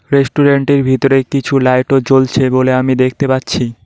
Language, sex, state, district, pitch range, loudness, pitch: Bengali, male, West Bengal, Cooch Behar, 130-140 Hz, -12 LUFS, 130 Hz